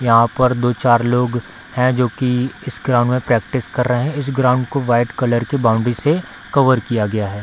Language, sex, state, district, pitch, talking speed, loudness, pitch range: Hindi, female, Bihar, Samastipur, 125 Hz, 210 wpm, -17 LUFS, 120-130 Hz